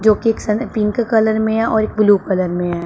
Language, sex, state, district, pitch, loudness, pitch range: Hindi, female, Punjab, Pathankot, 215 Hz, -16 LUFS, 205-220 Hz